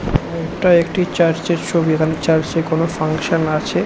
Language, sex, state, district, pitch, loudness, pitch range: Bengali, male, West Bengal, Jhargram, 165 Hz, -17 LUFS, 160-170 Hz